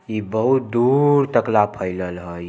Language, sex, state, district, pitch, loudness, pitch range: Maithili, male, Bihar, Samastipur, 110 Hz, -19 LUFS, 90-130 Hz